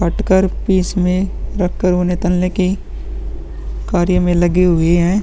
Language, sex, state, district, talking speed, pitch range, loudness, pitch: Hindi, male, Uttar Pradesh, Muzaffarnagar, 160 wpm, 170-185 Hz, -16 LUFS, 180 Hz